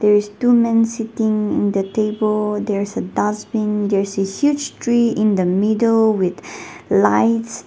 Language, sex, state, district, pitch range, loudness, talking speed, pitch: English, female, Nagaland, Dimapur, 205-230 Hz, -18 LUFS, 170 wpm, 215 Hz